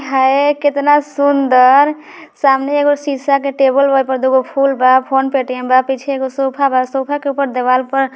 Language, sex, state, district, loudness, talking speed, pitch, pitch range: Hindi, female, Bihar, Gopalganj, -13 LUFS, 190 wpm, 275 Hz, 265-280 Hz